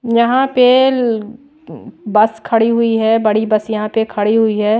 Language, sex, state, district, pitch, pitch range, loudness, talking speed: Hindi, female, Maharashtra, Washim, 225 Hz, 215-240 Hz, -14 LUFS, 165 wpm